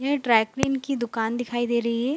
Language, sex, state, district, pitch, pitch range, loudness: Hindi, female, Bihar, Vaishali, 240 Hz, 235-270 Hz, -24 LUFS